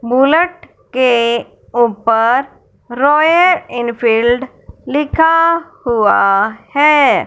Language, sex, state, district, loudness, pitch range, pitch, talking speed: Hindi, male, Punjab, Fazilka, -13 LUFS, 235-305 Hz, 255 Hz, 65 wpm